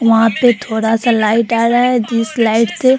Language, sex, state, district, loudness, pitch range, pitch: Hindi, female, Bihar, Vaishali, -13 LUFS, 225-240 Hz, 230 Hz